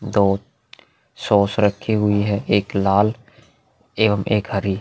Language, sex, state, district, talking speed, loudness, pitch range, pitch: Hindi, male, Uttar Pradesh, Hamirpur, 135 wpm, -19 LUFS, 100-110 Hz, 105 Hz